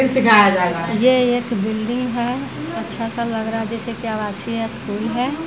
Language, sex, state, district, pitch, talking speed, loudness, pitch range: Hindi, female, Bihar, Vaishali, 230 Hz, 155 wpm, -19 LUFS, 220-245 Hz